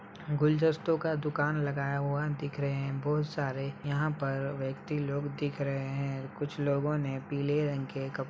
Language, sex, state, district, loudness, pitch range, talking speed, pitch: Hindi, male, Uttar Pradesh, Budaun, -32 LUFS, 135-150 Hz, 180 wpm, 140 Hz